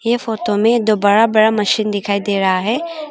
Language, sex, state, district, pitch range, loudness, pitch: Hindi, female, Arunachal Pradesh, Longding, 205-230 Hz, -15 LUFS, 215 Hz